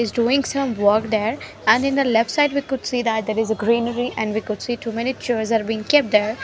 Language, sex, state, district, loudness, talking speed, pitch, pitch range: English, female, Haryana, Rohtak, -20 LUFS, 280 wpm, 230 Hz, 220-250 Hz